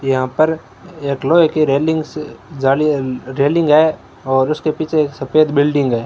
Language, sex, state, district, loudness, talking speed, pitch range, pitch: Hindi, male, Rajasthan, Bikaner, -16 LUFS, 150 wpm, 135-155 Hz, 150 Hz